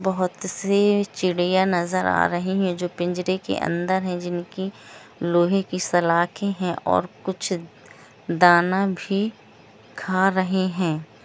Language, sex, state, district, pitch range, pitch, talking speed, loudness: Hindi, female, Jharkhand, Jamtara, 175-190 Hz, 185 Hz, 115 wpm, -22 LUFS